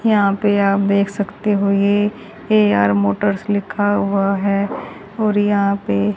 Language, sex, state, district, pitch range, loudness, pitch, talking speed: Hindi, female, Haryana, Rohtak, 195-205 Hz, -17 LUFS, 200 Hz, 145 wpm